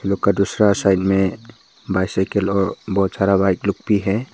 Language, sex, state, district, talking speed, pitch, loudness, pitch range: Hindi, male, Arunachal Pradesh, Papum Pare, 180 wpm, 100 Hz, -19 LUFS, 95-100 Hz